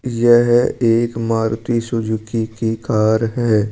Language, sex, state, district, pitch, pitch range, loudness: Hindi, male, Rajasthan, Jaipur, 115 Hz, 110-120 Hz, -17 LUFS